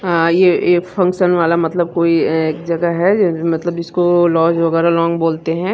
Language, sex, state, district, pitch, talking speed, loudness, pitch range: Hindi, female, Bihar, Katihar, 170 Hz, 165 wpm, -15 LUFS, 165-175 Hz